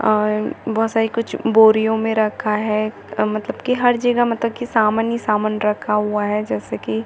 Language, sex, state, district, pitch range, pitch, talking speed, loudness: Hindi, female, Chhattisgarh, Bastar, 210-230 Hz, 215 Hz, 195 wpm, -19 LUFS